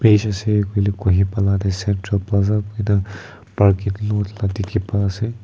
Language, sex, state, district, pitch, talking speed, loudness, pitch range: Nagamese, male, Nagaland, Kohima, 100 Hz, 155 wpm, -19 LUFS, 100-105 Hz